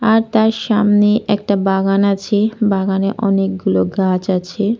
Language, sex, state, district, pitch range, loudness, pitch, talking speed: Bengali, female, Jharkhand, Jamtara, 195-215 Hz, -15 LUFS, 200 Hz, 125 wpm